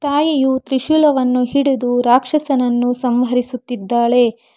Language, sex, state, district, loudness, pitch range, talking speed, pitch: Kannada, female, Karnataka, Bangalore, -16 LUFS, 245-275 Hz, 65 wpm, 250 Hz